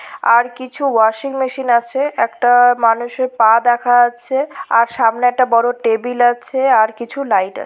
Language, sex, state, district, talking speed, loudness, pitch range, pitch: Bengali, female, West Bengal, Purulia, 155 wpm, -15 LUFS, 235-265 Hz, 245 Hz